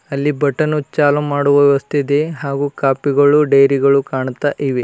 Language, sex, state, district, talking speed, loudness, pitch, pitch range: Kannada, male, Karnataka, Bidar, 160 wpm, -15 LUFS, 145 Hz, 140-145 Hz